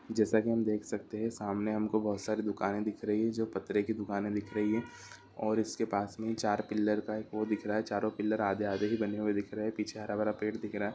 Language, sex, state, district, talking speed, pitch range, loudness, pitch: Hindi, male, Uttar Pradesh, Deoria, 275 wpm, 105-110 Hz, -34 LUFS, 105 Hz